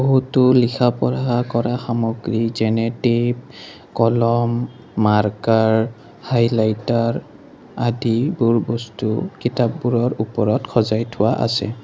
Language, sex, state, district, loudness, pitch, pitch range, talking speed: Assamese, male, Assam, Kamrup Metropolitan, -19 LUFS, 115 Hz, 115-120 Hz, 90 wpm